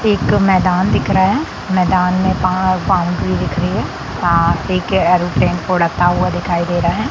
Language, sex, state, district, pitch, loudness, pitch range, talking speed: Hindi, female, Bihar, Darbhanga, 180 Hz, -15 LUFS, 170-190 Hz, 160 wpm